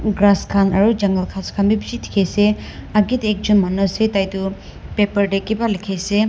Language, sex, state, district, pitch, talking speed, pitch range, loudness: Nagamese, female, Nagaland, Dimapur, 200 Hz, 210 wpm, 195-210 Hz, -18 LUFS